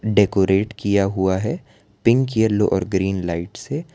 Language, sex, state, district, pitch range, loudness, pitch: Hindi, male, Gujarat, Valsad, 95-115 Hz, -20 LUFS, 105 Hz